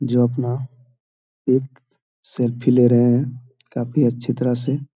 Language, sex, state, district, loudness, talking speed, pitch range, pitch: Hindi, male, Jharkhand, Jamtara, -20 LUFS, 145 wpm, 120-130 Hz, 125 Hz